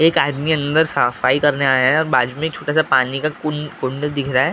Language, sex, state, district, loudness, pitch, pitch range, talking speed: Hindi, male, Maharashtra, Gondia, -18 LUFS, 145 Hz, 130-155 Hz, 265 wpm